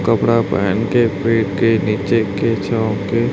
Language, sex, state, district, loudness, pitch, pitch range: Hindi, male, Chhattisgarh, Raipur, -17 LUFS, 115 Hz, 100-115 Hz